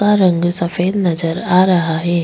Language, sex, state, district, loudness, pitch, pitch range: Hindi, female, Chhattisgarh, Bastar, -15 LUFS, 175 Hz, 170-185 Hz